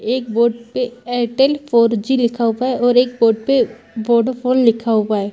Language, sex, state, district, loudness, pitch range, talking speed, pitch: Hindi, female, Chhattisgarh, Bilaspur, -16 LUFS, 230-250 Hz, 170 wpm, 235 Hz